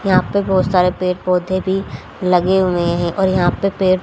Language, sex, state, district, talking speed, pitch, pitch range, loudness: Hindi, female, Haryana, Jhajjar, 210 wpm, 185 Hz, 180-190 Hz, -17 LUFS